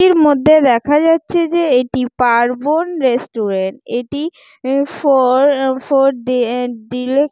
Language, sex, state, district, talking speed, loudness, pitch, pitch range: Bengali, female, West Bengal, Jalpaiguri, 115 wpm, -14 LUFS, 270 Hz, 250-295 Hz